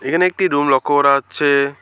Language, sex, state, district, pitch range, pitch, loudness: Bengali, male, West Bengal, Alipurduar, 140-150 Hz, 145 Hz, -15 LUFS